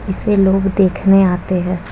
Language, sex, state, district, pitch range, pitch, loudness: Hindi, female, Jharkhand, Jamtara, 185-195 Hz, 190 Hz, -14 LUFS